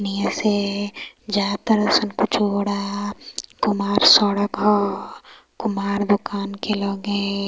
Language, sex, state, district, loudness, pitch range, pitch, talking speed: Hindi, male, Uttar Pradesh, Varanasi, -20 LUFS, 200-205 Hz, 205 Hz, 110 wpm